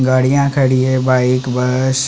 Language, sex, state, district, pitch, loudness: Hindi, male, Chhattisgarh, Sukma, 130 Hz, -14 LUFS